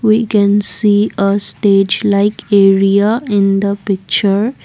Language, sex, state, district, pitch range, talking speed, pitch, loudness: English, female, Assam, Kamrup Metropolitan, 195-210 Hz, 130 wpm, 200 Hz, -12 LUFS